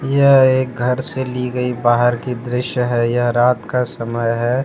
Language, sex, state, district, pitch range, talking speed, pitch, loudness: Hindi, male, Jharkhand, Deoghar, 120-130 Hz, 195 wpm, 125 Hz, -17 LUFS